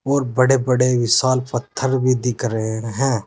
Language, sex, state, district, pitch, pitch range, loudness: Hindi, male, Uttar Pradesh, Saharanpur, 125 Hz, 120-130 Hz, -19 LUFS